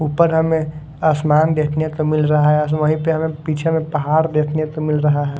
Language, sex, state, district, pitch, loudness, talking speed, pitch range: Hindi, male, Odisha, Khordha, 155 Hz, -17 LUFS, 220 wpm, 150-155 Hz